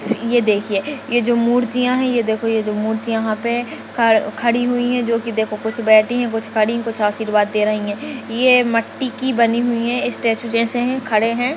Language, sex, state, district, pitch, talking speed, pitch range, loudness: Hindi, female, Chhattisgarh, Sarguja, 230 Hz, 210 wpm, 220-245 Hz, -18 LUFS